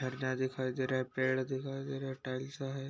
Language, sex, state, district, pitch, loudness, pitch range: Hindi, male, Bihar, Jamui, 130 Hz, -36 LUFS, 130-135 Hz